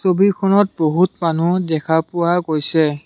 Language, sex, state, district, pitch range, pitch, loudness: Assamese, male, Assam, Kamrup Metropolitan, 160-185 Hz, 170 Hz, -17 LUFS